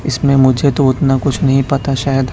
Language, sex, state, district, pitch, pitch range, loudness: Hindi, male, Chhattisgarh, Raipur, 135 Hz, 135-140 Hz, -13 LUFS